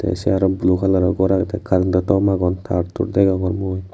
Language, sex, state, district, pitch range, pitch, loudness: Chakma, male, Tripura, Unakoti, 90-95 Hz, 95 Hz, -18 LUFS